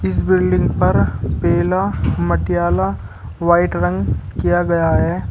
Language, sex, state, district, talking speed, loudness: Hindi, male, Uttar Pradesh, Shamli, 115 wpm, -17 LUFS